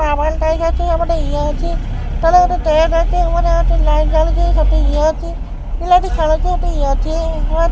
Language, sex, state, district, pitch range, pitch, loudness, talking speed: Odia, male, Odisha, Khordha, 315-345 Hz, 330 Hz, -16 LUFS, 150 wpm